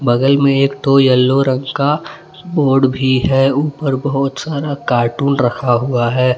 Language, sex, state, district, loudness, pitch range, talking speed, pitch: Hindi, male, Jharkhand, Palamu, -14 LUFS, 130-140 Hz, 160 wpm, 135 Hz